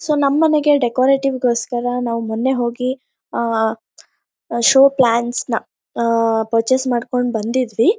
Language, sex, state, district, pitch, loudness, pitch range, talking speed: Kannada, female, Karnataka, Shimoga, 245 Hz, -17 LUFS, 230-265 Hz, 130 wpm